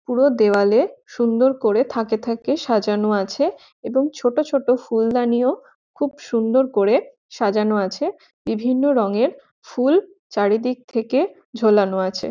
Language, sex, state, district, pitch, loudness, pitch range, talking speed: Bengali, female, West Bengal, Jhargram, 245 Hz, -20 LUFS, 215-280 Hz, 135 wpm